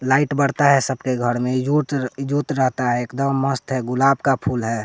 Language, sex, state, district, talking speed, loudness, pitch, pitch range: Hindi, male, Bihar, West Champaran, 185 wpm, -20 LUFS, 135 Hz, 125-140 Hz